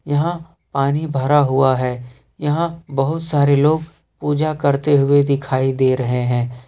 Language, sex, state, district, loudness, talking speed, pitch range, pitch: Hindi, male, Jharkhand, Ranchi, -18 LUFS, 145 wpm, 130-150 Hz, 140 Hz